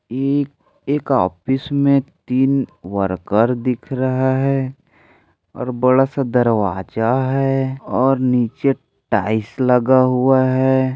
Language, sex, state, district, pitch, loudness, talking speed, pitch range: Hindi, male, Maharashtra, Aurangabad, 130 Hz, -18 LUFS, 110 wpm, 120-135 Hz